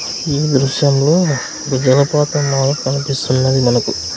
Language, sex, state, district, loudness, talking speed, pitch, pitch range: Telugu, male, Andhra Pradesh, Sri Satya Sai, -15 LUFS, 100 wpm, 135 Hz, 130-145 Hz